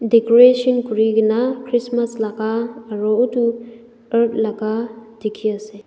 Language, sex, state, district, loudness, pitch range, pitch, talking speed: Nagamese, female, Nagaland, Dimapur, -18 LUFS, 220-235 Hz, 230 Hz, 100 wpm